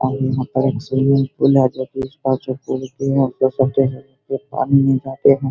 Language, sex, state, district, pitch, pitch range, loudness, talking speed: Hindi, male, Bihar, Begusarai, 135 Hz, 130-135 Hz, -18 LUFS, 55 wpm